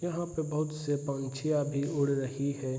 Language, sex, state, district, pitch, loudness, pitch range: Hindi, male, Bihar, Saharsa, 145 Hz, -32 LUFS, 140-155 Hz